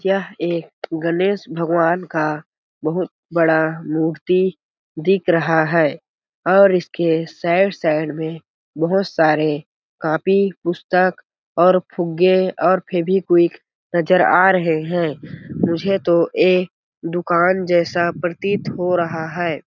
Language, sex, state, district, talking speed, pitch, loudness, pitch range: Hindi, male, Chhattisgarh, Balrampur, 115 wpm, 170 Hz, -18 LUFS, 160-185 Hz